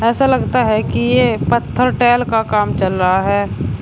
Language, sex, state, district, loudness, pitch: Hindi, male, Uttar Pradesh, Shamli, -15 LUFS, 195 Hz